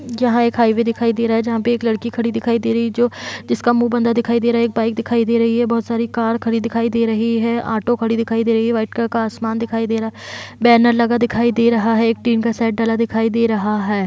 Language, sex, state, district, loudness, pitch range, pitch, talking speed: Hindi, female, Bihar, Kishanganj, -17 LUFS, 225-235 Hz, 230 Hz, 280 wpm